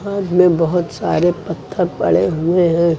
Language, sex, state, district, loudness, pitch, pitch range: Hindi, male, Uttar Pradesh, Lucknow, -16 LUFS, 175 Hz, 170-180 Hz